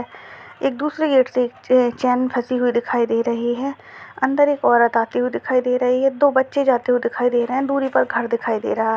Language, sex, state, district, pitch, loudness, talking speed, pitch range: Hindi, female, Uttar Pradesh, Deoria, 250 Hz, -19 LUFS, 235 wpm, 240-270 Hz